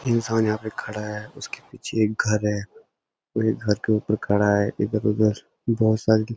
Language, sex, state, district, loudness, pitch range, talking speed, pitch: Hindi, male, Uttarakhand, Uttarkashi, -24 LUFS, 105-110 Hz, 205 wpm, 110 Hz